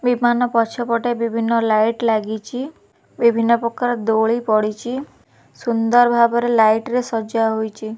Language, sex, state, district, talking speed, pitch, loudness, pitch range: Odia, female, Odisha, Khordha, 115 wpm, 235 Hz, -18 LUFS, 225-240 Hz